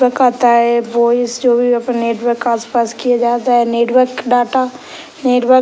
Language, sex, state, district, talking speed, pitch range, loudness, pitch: Hindi, male, Bihar, Sitamarhi, 170 wpm, 235-250 Hz, -14 LUFS, 240 Hz